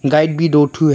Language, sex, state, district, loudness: Hindi, male, Arunachal Pradesh, Longding, -14 LUFS